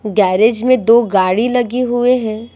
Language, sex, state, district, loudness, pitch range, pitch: Hindi, female, Bihar, Patna, -13 LUFS, 215-245 Hz, 230 Hz